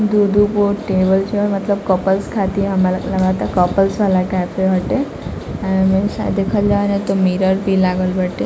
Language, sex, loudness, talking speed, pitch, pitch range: Bhojpuri, female, -16 LUFS, 135 wpm, 195 Hz, 185-200 Hz